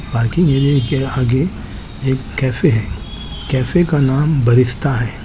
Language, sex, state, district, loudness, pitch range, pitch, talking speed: Hindi, male, Chandigarh, Chandigarh, -16 LUFS, 120-140 Hz, 130 Hz, 135 wpm